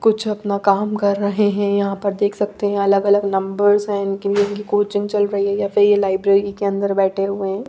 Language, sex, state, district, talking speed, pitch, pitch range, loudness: Hindi, female, Bihar, Patna, 250 wpm, 200 Hz, 200-205 Hz, -18 LUFS